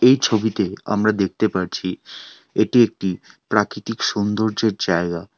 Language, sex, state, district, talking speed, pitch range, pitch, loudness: Bengali, male, West Bengal, Alipurduar, 110 wpm, 95-110 Hz, 105 Hz, -20 LUFS